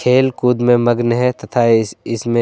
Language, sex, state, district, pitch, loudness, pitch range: Hindi, male, Jharkhand, Deoghar, 120 Hz, -15 LUFS, 115-125 Hz